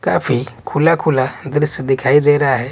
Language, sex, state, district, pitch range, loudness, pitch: Hindi, male, Maharashtra, Washim, 130-150 Hz, -16 LUFS, 145 Hz